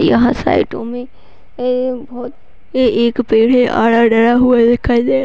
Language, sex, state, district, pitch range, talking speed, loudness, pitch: Hindi, female, Uttar Pradesh, Etah, 235-250 Hz, 90 wpm, -13 LUFS, 245 Hz